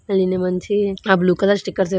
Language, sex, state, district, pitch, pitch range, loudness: Telugu, female, Andhra Pradesh, Visakhapatnam, 190 Hz, 185-200 Hz, -18 LUFS